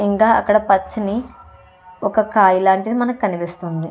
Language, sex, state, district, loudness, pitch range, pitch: Telugu, female, Andhra Pradesh, Chittoor, -17 LUFS, 185-220 Hz, 205 Hz